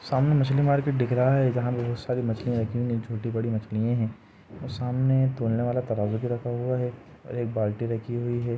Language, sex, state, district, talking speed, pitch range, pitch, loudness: Hindi, male, Uttar Pradesh, Jalaun, 225 wpm, 115-125 Hz, 120 Hz, -26 LUFS